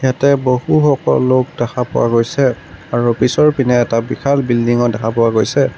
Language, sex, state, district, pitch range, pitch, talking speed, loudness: Assamese, male, Assam, Kamrup Metropolitan, 120-140 Hz, 125 Hz, 165 wpm, -14 LUFS